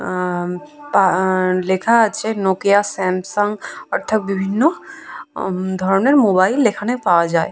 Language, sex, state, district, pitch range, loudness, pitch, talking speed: Bengali, female, West Bengal, Purulia, 185-220 Hz, -17 LUFS, 195 Hz, 110 wpm